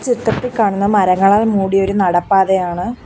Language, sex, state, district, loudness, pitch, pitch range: Malayalam, female, Kerala, Kollam, -14 LUFS, 195 Hz, 190-220 Hz